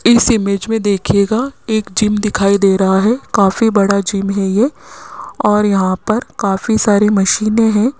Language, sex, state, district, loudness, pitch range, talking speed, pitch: Hindi, female, Rajasthan, Jaipur, -14 LUFS, 195-220 Hz, 165 wpm, 210 Hz